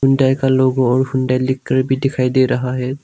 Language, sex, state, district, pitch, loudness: Hindi, male, Arunachal Pradesh, Longding, 130 Hz, -16 LUFS